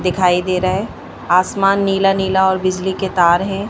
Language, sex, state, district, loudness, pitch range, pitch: Hindi, male, Madhya Pradesh, Bhopal, -16 LUFS, 185-195 Hz, 190 Hz